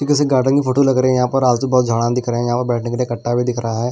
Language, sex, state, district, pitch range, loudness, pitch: Hindi, male, Delhi, New Delhi, 120-130 Hz, -17 LUFS, 125 Hz